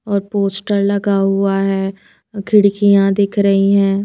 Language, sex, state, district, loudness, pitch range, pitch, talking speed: Hindi, female, Himachal Pradesh, Shimla, -15 LUFS, 195-200 Hz, 200 Hz, 135 wpm